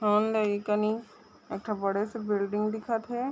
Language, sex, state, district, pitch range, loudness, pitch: Chhattisgarhi, female, Chhattisgarh, Raigarh, 210-225 Hz, -30 LUFS, 210 Hz